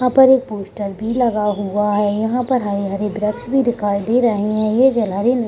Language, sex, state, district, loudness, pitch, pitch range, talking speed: Hindi, female, Bihar, Gaya, -17 LUFS, 215 Hz, 205-245 Hz, 220 wpm